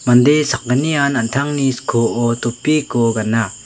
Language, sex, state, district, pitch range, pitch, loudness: Garo, male, Meghalaya, West Garo Hills, 115-140 Hz, 120 Hz, -16 LUFS